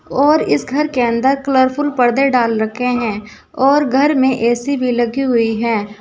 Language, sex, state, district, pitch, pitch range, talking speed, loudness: Hindi, female, Uttar Pradesh, Saharanpur, 255 Hz, 235-275 Hz, 180 wpm, -15 LUFS